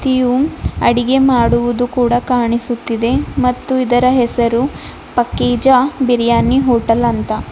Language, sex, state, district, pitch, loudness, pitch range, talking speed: Kannada, female, Karnataka, Bidar, 245 Hz, -14 LUFS, 235-255 Hz, 95 wpm